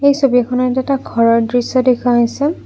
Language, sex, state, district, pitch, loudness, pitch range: Assamese, female, Assam, Kamrup Metropolitan, 250 Hz, -14 LUFS, 240-270 Hz